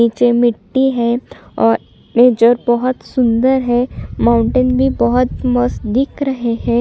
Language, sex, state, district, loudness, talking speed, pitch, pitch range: Hindi, female, Chhattisgarh, Sukma, -15 LUFS, 140 wpm, 245 Hz, 235-255 Hz